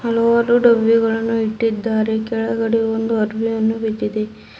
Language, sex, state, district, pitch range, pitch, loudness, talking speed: Kannada, female, Karnataka, Bidar, 220-230 Hz, 225 Hz, -18 LUFS, 90 wpm